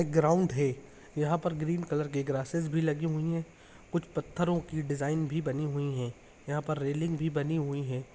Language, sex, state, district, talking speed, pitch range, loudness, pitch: Hindi, male, Bihar, Jahanabad, 200 wpm, 140-165 Hz, -32 LUFS, 155 Hz